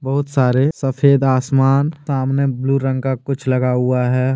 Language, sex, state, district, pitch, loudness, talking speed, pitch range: Hindi, male, Jharkhand, Deoghar, 135 Hz, -17 LUFS, 165 wpm, 130-140 Hz